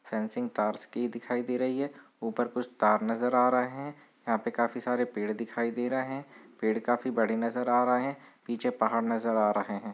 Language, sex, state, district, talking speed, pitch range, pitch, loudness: Hindi, male, Chhattisgarh, Bilaspur, 215 wpm, 115-125 Hz, 120 Hz, -30 LUFS